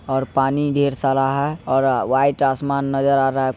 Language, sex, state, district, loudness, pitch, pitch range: Maithili, male, Bihar, Supaul, -19 LUFS, 135 Hz, 135-140 Hz